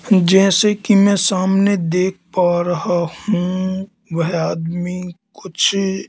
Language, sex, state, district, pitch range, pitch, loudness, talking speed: Hindi, male, Madhya Pradesh, Katni, 175-195 Hz, 185 Hz, -17 LUFS, 110 wpm